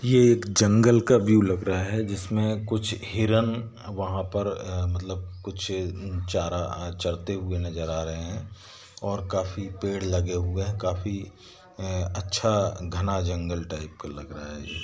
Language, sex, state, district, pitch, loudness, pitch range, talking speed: Hindi, male, Bihar, Sitamarhi, 95 Hz, -26 LUFS, 90-105 Hz, 160 wpm